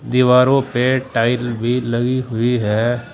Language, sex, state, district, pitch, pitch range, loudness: Hindi, male, Uttar Pradesh, Saharanpur, 120 Hz, 120-125 Hz, -17 LUFS